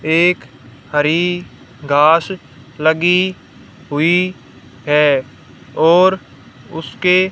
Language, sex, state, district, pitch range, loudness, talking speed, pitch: Hindi, female, Haryana, Rohtak, 135-175 Hz, -15 LUFS, 65 wpm, 150 Hz